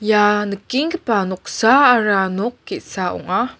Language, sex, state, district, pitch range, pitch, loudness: Garo, female, Meghalaya, West Garo Hills, 200-245 Hz, 215 Hz, -17 LUFS